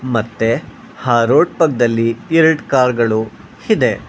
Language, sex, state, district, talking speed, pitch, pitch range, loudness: Kannada, male, Karnataka, Bangalore, 115 wpm, 120 Hz, 115-140 Hz, -15 LUFS